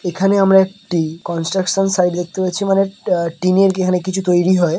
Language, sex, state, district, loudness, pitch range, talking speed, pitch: Bengali, male, West Bengal, Purulia, -16 LUFS, 175-195 Hz, 175 wpm, 185 Hz